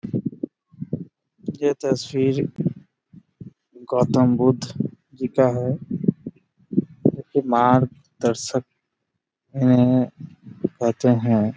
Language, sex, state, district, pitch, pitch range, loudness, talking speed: Hindi, male, Bihar, Jahanabad, 130 Hz, 125-155 Hz, -22 LUFS, 65 wpm